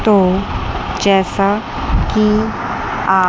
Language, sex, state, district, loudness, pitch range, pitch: Hindi, female, Chandigarh, Chandigarh, -16 LUFS, 190-210 Hz, 200 Hz